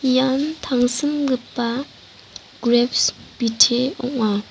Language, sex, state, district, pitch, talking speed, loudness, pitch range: Garo, female, Meghalaya, West Garo Hills, 250 Hz, 65 wpm, -20 LUFS, 240-265 Hz